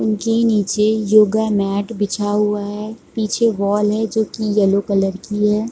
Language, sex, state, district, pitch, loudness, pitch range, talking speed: Hindi, female, Chhattisgarh, Bilaspur, 210 Hz, -18 LUFS, 205-220 Hz, 190 wpm